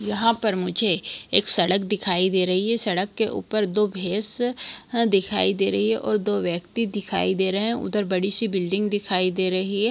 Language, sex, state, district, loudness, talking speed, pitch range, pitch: Hindi, female, Chhattisgarh, Bilaspur, -23 LUFS, 205 wpm, 185-215 Hz, 200 Hz